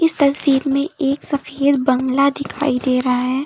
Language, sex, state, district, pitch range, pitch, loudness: Hindi, female, Uttar Pradesh, Lucknow, 260-285 Hz, 275 Hz, -18 LUFS